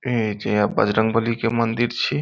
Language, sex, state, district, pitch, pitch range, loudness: Maithili, male, Bihar, Saharsa, 115 Hz, 105-115 Hz, -21 LUFS